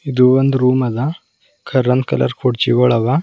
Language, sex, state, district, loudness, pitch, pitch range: Kannada, male, Karnataka, Bidar, -15 LUFS, 130 Hz, 125-135 Hz